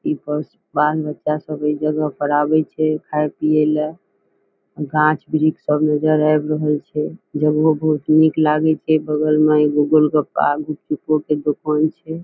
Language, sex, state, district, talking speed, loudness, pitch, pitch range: Maithili, female, Bihar, Saharsa, 155 wpm, -18 LUFS, 155 Hz, 150-155 Hz